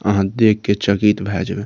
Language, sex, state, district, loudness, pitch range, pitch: Maithili, male, Bihar, Saharsa, -17 LUFS, 100-105 Hz, 100 Hz